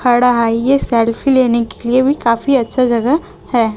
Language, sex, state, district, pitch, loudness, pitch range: Hindi, female, Chhattisgarh, Raipur, 245 Hz, -14 LUFS, 230-265 Hz